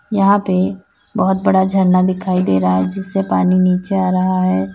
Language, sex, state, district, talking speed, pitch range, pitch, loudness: Hindi, female, Uttar Pradesh, Lalitpur, 190 wpm, 185-195 Hz, 185 Hz, -15 LUFS